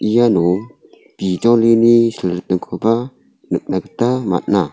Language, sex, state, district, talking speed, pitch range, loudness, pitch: Garo, male, Meghalaya, South Garo Hills, 75 wpm, 90-120 Hz, -16 LUFS, 115 Hz